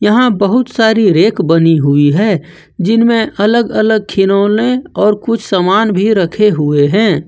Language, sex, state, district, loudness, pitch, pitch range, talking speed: Hindi, male, Jharkhand, Ranchi, -11 LUFS, 210 Hz, 180-220 Hz, 150 wpm